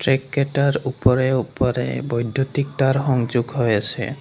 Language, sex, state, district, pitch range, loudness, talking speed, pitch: Assamese, male, Assam, Kamrup Metropolitan, 120-140 Hz, -21 LUFS, 130 wpm, 130 Hz